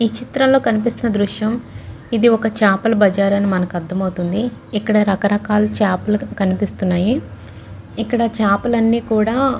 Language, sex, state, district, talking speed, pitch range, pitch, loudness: Telugu, female, Andhra Pradesh, Chittoor, 110 wpm, 195-230 Hz, 210 Hz, -17 LUFS